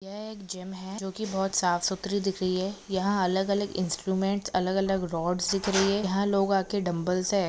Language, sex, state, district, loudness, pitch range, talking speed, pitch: Hindi, female, Maharashtra, Nagpur, -28 LUFS, 185-200 Hz, 210 wpm, 195 Hz